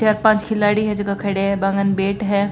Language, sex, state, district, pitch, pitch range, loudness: Marwari, female, Rajasthan, Nagaur, 200 Hz, 200-210 Hz, -18 LUFS